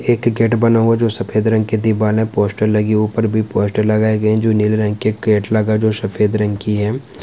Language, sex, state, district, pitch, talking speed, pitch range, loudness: Hindi, male, West Bengal, Dakshin Dinajpur, 110 Hz, 215 wpm, 105-110 Hz, -16 LUFS